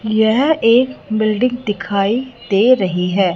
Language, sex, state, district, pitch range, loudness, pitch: Hindi, female, Punjab, Fazilka, 200-245 Hz, -15 LUFS, 220 Hz